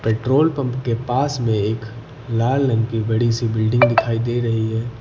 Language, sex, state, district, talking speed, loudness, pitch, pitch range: Hindi, male, Uttar Pradesh, Lucknow, 190 wpm, -19 LUFS, 115 Hz, 115-125 Hz